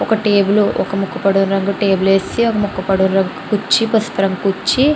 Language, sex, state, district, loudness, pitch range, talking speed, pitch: Telugu, female, Andhra Pradesh, Chittoor, -15 LUFS, 195-215 Hz, 205 wpm, 200 Hz